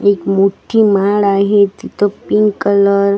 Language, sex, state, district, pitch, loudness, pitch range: Marathi, female, Maharashtra, Gondia, 200 Hz, -13 LUFS, 200-205 Hz